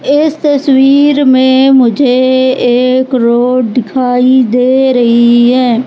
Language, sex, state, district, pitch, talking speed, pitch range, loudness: Hindi, female, Madhya Pradesh, Katni, 255 Hz, 100 wpm, 245-265 Hz, -8 LUFS